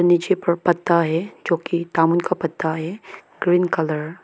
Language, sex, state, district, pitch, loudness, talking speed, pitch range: Hindi, female, Arunachal Pradesh, Lower Dibang Valley, 170 Hz, -21 LUFS, 185 wpm, 165-180 Hz